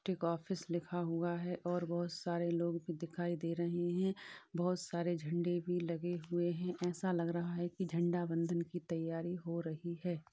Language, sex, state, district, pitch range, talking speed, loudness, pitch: Hindi, male, Uttar Pradesh, Varanasi, 170-175 Hz, 190 wpm, -39 LUFS, 175 Hz